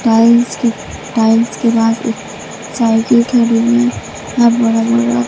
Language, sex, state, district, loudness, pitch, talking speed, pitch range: Hindi, female, Bihar, Katihar, -13 LUFS, 230 Hz, 100 wpm, 225-235 Hz